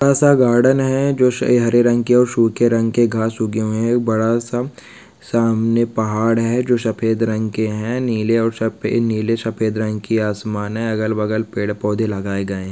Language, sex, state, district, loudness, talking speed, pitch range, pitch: Hindi, male, Maharashtra, Solapur, -18 LUFS, 190 wpm, 110-120 Hz, 115 Hz